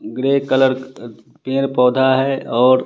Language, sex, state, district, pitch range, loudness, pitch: Hindi, male, Bihar, West Champaran, 125-135 Hz, -16 LUFS, 130 Hz